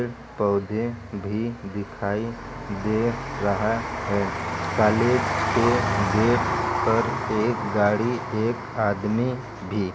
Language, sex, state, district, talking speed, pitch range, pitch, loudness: Hindi, male, Uttar Pradesh, Varanasi, 85 wpm, 100-120 Hz, 110 Hz, -24 LUFS